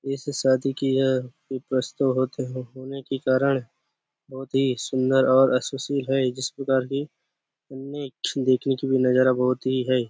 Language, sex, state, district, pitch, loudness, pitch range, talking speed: Hindi, male, Chhattisgarh, Bastar, 130 Hz, -24 LUFS, 130-135 Hz, 105 wpm